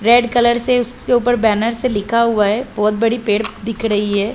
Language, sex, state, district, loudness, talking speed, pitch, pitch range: Hindi, female, Chhattisgarh, Balrampur, -16 LUFS, 220 wpm, 230 Hz, 210-240 Hz